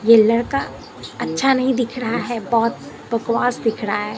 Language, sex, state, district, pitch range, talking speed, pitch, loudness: Hindi, female, Bihar, Katihar, 225-245 Hz, 170 wpm, 230 Hz, -19 LUFS